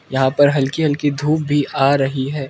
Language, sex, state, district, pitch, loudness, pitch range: Hindi, male, Arunachal Pradesh, Lower Dibang Valley, 145 Hz, -17 LUFS, 135-145 Hz